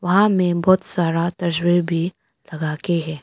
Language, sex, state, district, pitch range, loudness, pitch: Hindi, female, Arunachal Pradesh, Papum Pare, 165-180 Hz, -20 LUFS, 175 Hz